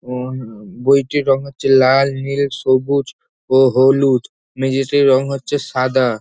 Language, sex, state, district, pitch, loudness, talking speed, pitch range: Bengali, male, West Bengal, North 24 Parganas, 135 Hz, -16 LUFS, 135 wpm, 130-140 Hz